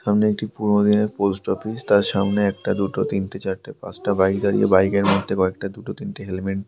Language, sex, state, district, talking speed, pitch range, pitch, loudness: Bengali, male, West Bengal, Malda, 205 wpm, 95-105 Hz, 100 Hz, -21 LUFS